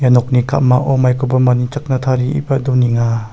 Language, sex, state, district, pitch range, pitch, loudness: Garo, male, Meghalaya, South Garo Hills, 125-135 Hz, 130 Hz, -14 LUFS